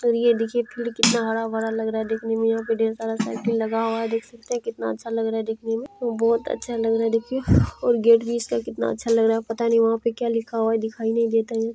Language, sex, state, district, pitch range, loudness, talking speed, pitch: Hindi, female, Bihar, Lakhisarai, 225-230 Hz, -23 LUFS, 265 wpm, 225 Hz